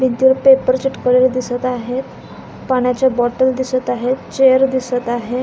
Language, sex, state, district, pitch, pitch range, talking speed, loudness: Marathi, female, Maharashtra, Pune, 255 Hz, 250-260 Hz, 135 wpm, -16 LUFS